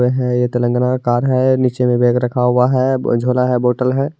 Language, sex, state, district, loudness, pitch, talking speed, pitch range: Hindi, male, Bihar, Madhepura, -15 LUFS, 125 Hz, 240 wpm, 125-130 Hz